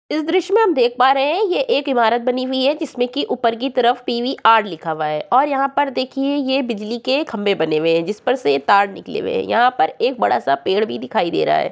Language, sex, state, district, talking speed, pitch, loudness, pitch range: Hindi, female, Uttar Pradesh, Jyotiba Phule Nagar, 250 wpm, 255 Hz, -18 LUFS, 225-285 Hz